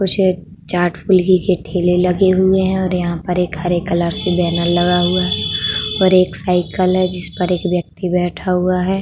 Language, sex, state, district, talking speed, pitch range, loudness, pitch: Hindi, female, Uttar Pradesh, Budaun, 195 wpm, 175-185 Hz, -16 LUFS, 180 Hz